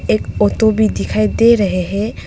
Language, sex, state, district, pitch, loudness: Hindi, female, Arunachal Pradesh, Papum Pare, 185 Hz, -15 LUFS